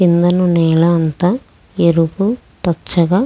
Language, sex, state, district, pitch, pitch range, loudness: Telugu, female, Andhra Pradesh, Krishna, 175 Hz, 170-180 Hz, -15 LUFS